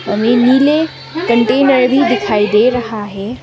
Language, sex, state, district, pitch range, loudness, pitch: Hindi, female, Sikkim, Gangtok, 215-265 Hz, -13 LUFS, 240 Hz